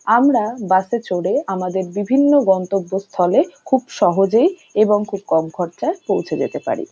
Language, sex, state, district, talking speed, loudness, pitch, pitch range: Bengali, female, West Bengal, North 24 Parganas, 145 wpm, -18 LUFS, 200 Hz, 185-260 Hz